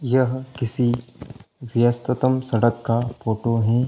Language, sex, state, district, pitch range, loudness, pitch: Hindi, male, Chhattisgarh, Bilaspur, 115-130 Hz, -22 LUFS, 120 Hz